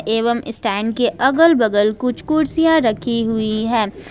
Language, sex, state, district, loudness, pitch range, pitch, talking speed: Hindi, female, Jharkhand, Ranchi, -17 LUFS, 220-265 Hz, 235 Hz, 145 wpm